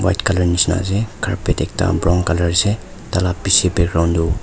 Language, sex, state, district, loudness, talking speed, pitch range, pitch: Nagamese, male, Nagaland, Kohima, -17 LUFS, 190 wpm, 85-95 Hz, 90 Hz